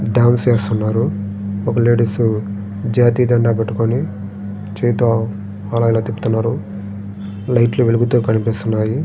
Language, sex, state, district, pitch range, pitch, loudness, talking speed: Telugu, male, Andhra Pradesh, Srikakulam, 100-120 Hz, 110 Hz, -17 LUFS, 105 wpm